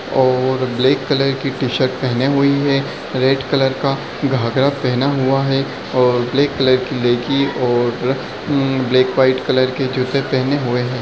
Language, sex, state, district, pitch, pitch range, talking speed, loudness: Hindi, male, Bihar, Darbhanga, 130 Hz, 130-135 Hz, 165 wpm, -17 LUFS